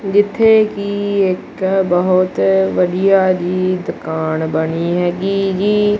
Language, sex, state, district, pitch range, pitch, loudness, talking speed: Punjabi, male, Punjab, Kapurthala, 175-200 Hz, 185 Hz, -15 LUFS, 100 wpm